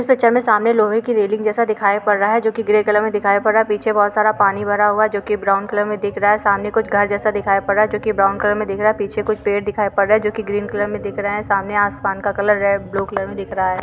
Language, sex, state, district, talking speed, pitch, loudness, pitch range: Hindi, female, Chhattisgarh, Jashpur, 340 wpm, 205 Hz, -17 LUFS, 200-215 Hz